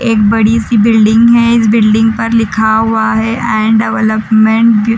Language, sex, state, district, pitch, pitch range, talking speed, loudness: Hindi, female, Bihar, Patna, 220 Hz, 220-225 Hz, 170 wpm, -9 LUFS